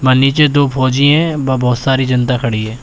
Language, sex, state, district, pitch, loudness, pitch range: Hindi, male, Uttar Pradesh, Shamli, 130 Hz, -13 LUFS, 125-140 Hz